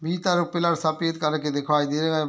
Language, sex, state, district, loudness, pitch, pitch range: Hindi, male, Bihar, Muzaffarpur, -24 LUFS, 160 Hz, 150-170 Hz